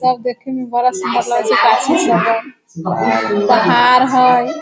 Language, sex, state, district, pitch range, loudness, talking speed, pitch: Hindi, female, Bihar, Sitamarhi, 220-255 Hz, -14 LUFS, 115 wpm, 245 Hz